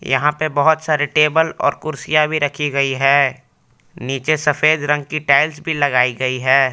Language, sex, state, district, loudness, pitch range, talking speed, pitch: Hindi, male, Jharkhand, Palamu, -16 LUFS, 135-155 Hz, 180 wpm, 150 Hz